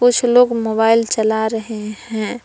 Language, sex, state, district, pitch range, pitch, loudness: Hindi, female, Jharkhand, Palamu, 220-240 Hz, 225 Hz, -16 LUFS